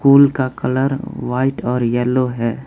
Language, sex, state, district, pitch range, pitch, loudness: Hindi, male, West Bengal, Alipurduar, 125-135 Hz, 130 Hz, -17 LUFS